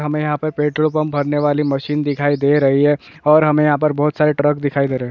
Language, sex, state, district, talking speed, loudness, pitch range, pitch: Hindi, male, Jharkhand, Sahebganj, 270 wpm, -16 LUFS, 145-150 Hz, 150 Hz